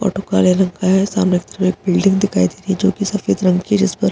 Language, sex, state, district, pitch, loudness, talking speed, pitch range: Hindi, female, Bihar, Saharsa, 195 Hz, -16 LUFS, 320 wpm, 185-200 Hz